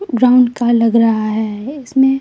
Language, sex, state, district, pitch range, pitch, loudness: Hindi, female, Bihar, Patna, 230-265 Hz, 240 Hz, -14 LUFS